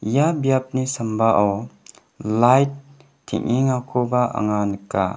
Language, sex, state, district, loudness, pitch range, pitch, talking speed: Garo, male, Meghalaya, West Garo Hills, -20 LUFS, 105-135 Hz, 125 Hz, 80 wpm